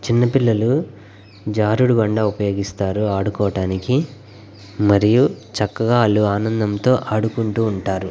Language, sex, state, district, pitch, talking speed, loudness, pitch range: Telugu, male, Andhra Pradesh, Guntur, 105 Hz, 90 wpm, -18 LUFS, 100-115 Hz